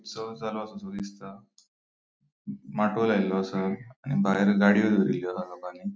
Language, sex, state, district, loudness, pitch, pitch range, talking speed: Konkani, male, Goa, North and South Goa, -27 LUFS, 100 Hz, 95-110 Hz, 80 wpm